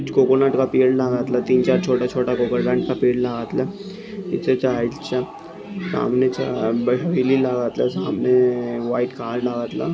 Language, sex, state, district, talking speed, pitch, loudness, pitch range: Marathi, male, Maharashtra, Sindhudurg, 80 wpm, 125 Hz, -20 LUFS, 120-130 Hz